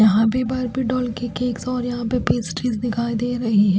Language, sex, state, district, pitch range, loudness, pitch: Hindi, female, Chhattisgarh, Raipur, 225-250 Hz, -22 LUFS, 240 Hz